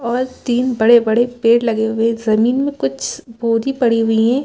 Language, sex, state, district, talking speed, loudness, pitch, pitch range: Hindi, female, Chhattisgarh, Bilaspur, 215 wpm, -16 LUFS, 230 Hz, 225-250 Hz